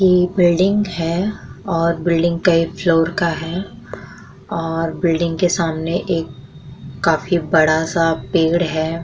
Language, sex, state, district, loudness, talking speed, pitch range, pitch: Hindi, female, Bihar, Vaishali, -18 LUFS, 125 wpm, 165-180 Hz, 170 Hz